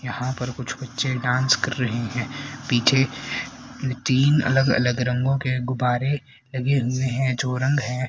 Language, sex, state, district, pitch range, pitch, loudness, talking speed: Hindi, female, Haryana, Rohtak, 125-135 Hz, 130 Hz, -23 LUFS, 155 wpm